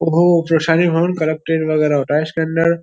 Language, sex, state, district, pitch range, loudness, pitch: Hindi, male, Uttar Pradesh, Jyotiba Phule Nagar, 155-165 Hz, -16 LUFS, 165 Hz